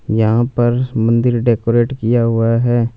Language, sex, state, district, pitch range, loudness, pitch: Hindi, male, Punjab, Fazilka, 115-120 Hz, -15 LUFS, 120 Hz